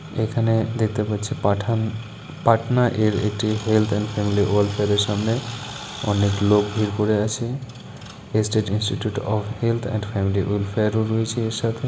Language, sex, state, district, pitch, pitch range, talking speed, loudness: Bengali, male, West Bengal, Malda, 110 Hz, 105-115 Hz, 140 wpm, -22 LUFS